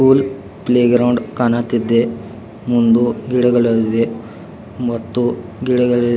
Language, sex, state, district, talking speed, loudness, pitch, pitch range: Kannada, male, Karnataka, Belgaum, 85 wpm, -16 LUFS, 120 Hz, 115-125 Hz